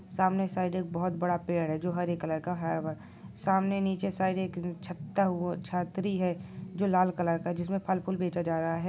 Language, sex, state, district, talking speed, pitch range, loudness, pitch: Hindi, male, Chhattisgarh, Jashpur, 215 wpm, 175-190 Hz, -31 LUFS, 180 Hz